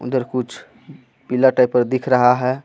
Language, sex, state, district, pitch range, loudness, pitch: Hindi, male, Jharkhand, Garhwa, 125-130 Hz, -17 LUFS, 125 Hz